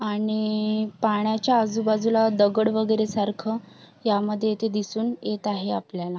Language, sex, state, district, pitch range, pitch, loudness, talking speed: Marathi, female, Maharashtra, Sindhudurg, 210-220 Hz, 215 Hz, -24 LUFS, 115 wpm